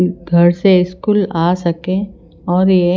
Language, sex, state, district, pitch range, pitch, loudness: Hindi, female, Himachal Pradesh, Shimla, 175-190 Hz, 180 Hz, -14 LUFS